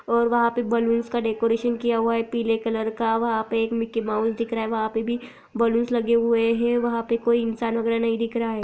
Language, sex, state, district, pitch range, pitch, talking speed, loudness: Hindi, female, Chhattisgarh, Raigarh, 225-235 Hz, 230 Hz, 235 wpm, -23 LUFS